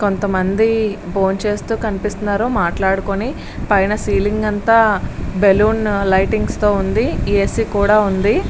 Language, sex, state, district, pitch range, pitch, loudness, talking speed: Telugu, female, Andhra Pradesh, Srikakulam, 195-215 Hz, 205 Hz, -16 LUFS, 90 wpm